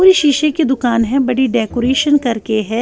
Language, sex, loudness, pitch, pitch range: Urdu, female, -14 LUFS, 255 Hz, 235-290 Hz